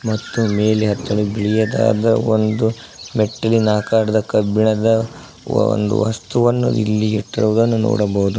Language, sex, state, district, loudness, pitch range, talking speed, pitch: Kannada, male, Karnataka, Koppal, -17 LUFS, 105-115 Hz, 85 wpm, 110 Hz